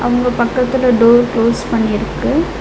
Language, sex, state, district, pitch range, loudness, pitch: Tamil, female, Tamil Nadu, Nilgiris, 230-245 Hz, -14 LUFS, 240 Hz